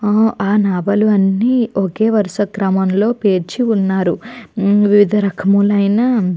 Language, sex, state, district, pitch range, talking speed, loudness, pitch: Telugu, female, Andhra Pradesh, Chittoor, 195-215 Hz, 115 wpm, -14 LUFS, 205 Hz